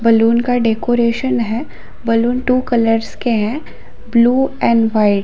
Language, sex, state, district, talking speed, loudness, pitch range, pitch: Hindi, female, Jharkhand, Jamtara, 140 wpm, -15 LUFS, 225-245 Hz, 235 Hz